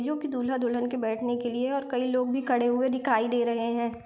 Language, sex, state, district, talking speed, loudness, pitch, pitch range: Hindi, female, Bihar, East Champaran, 280 wpm, -27 LUFS, 245 Hz, 235-260 Hz